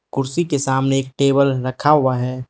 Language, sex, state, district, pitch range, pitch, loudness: Hindi, male, Manipur, Imphal West, 130-140 Hz, 135 Hz, -18 LUFS